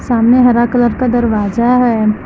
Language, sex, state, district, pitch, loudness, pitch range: Hindi, female, Uttar Pradesh, Lucknow, 240 Hz, -12 LUFS, 230-245 Hz